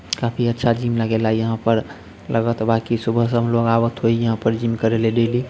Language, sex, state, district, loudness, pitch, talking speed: Bhojpuri, male, Bihar, Sitamarhi, -19 LUFS, 115 Hz, 150 wpm